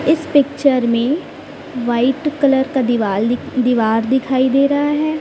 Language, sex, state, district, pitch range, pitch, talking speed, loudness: Hindi, female, Chhattisgarh, Raipur, 245-290 Hz, 265 Hz, 150 wpm, -16 LUFS